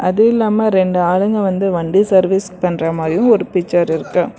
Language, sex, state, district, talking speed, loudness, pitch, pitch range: Tamil, female, Karnataka, Bangalore, 165 wpm, -15 LUFS, 185 Hz, 175-205 Hz